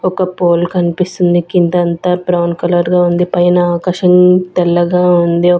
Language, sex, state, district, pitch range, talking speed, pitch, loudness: Telugu, female, Andhra Pradesh, Sri Satya Sai, 175-180 Hz, 130 wpm, 175 Hz, -12 LUFS